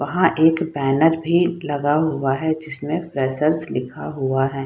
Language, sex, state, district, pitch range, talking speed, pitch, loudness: Hindi, female, Bihar, Saharsa, 135-160 Hz, 180 wpm, 155 Hz, -19 LUFS